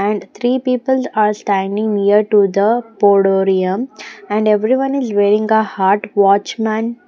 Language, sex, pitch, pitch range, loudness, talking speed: English, female, 210 Hz, 200-230 Hz, -15 LUFS, 135 wpm